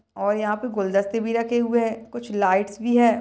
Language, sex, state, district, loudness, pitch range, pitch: Hindi, female, Uttar Pradesh, Ghazipur, -23 LUFS, 205-235 Hz, 225 Hz